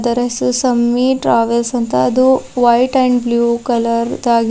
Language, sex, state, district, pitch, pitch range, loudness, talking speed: Kannada, female, Karnataka, Bidar, 240 Hz, 235-250 Hz, -14 LUFS, 145 wpm